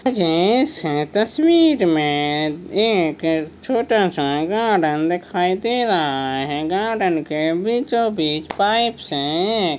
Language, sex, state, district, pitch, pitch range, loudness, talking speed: Hindi, male, Maharashtra, Sindhudurg, 175 Hz, 150-225 Hz, -19 LUFS, 110 wpm